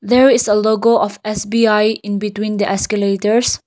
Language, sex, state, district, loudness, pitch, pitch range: English, female, Nagaland, Kohima, -15 LUFS, 210 Hz, 205-225 Hz